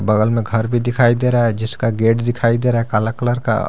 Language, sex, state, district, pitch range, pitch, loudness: Hindi, male, Jharkhand, Garhwa, 110-120 Hz, 115 Hz, -17 LUFS